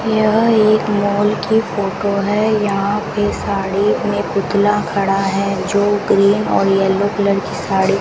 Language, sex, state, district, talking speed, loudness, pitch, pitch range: Hindi, female, Rajasthan, Bikaner, 155 wpm, -16 LUFS, 205 Hz, 195-210 Hz